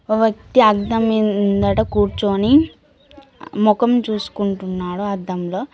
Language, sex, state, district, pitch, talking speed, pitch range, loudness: Telugu, female, Telangana, Mahabubabad, 210 Hz, 85 wpm, 200-240 Hz, -18 LUFS